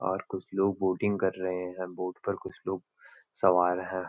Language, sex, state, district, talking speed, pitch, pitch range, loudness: Hindi, male, Uttarakhand, Uttarkashi, 190 wpm, 95 Hz, 90-95 Hz, -30 LUFS